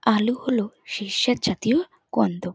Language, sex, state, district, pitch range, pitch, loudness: Bengali, female, West Bengal, North 24 Parganas, 200-250 Hz, 225 Hz, -24 LUFS